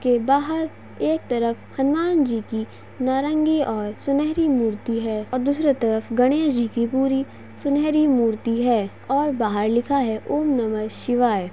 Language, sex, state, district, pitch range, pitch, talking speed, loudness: Hindi, female, Uttar Pradesh, Gorakhpur, 230-285 Hz, 255 Hz, 150 wpm, -22 LUFS